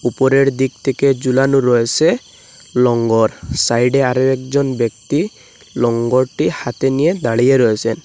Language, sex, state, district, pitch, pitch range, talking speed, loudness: Bengali, male, Assam, Hailakandi, 130 Hz, 120-135 Hz, 120 wpm, -15 LUFS